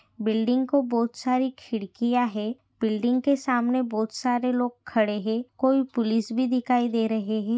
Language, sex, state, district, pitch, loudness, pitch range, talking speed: Hindi, female, Maharashtra, Pune, 240 Hz, -25 LUFS, 220-255 Hz, 165 wpm